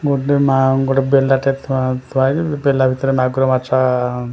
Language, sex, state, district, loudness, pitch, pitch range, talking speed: Odia, male, Odisha, Khordha, -16 LUFS, 135 Hz, 130-135 Hz, 140 wpm